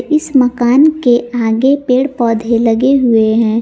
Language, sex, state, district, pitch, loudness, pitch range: Hindi, female, Jharkhand, Garhwa, 245 Hz, -12 LUFS, 230-270 Hz